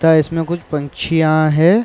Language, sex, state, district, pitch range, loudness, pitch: Hindi, male, Uttar Pradesh, Varanasi, 155-165 Hz, -16 LUFS, 160 Hz